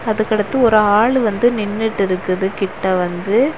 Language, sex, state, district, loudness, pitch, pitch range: Tamil, female, Tamil Nadu, Kanyakumari, -16 LUFS, 210 Hz, 190-225 Hz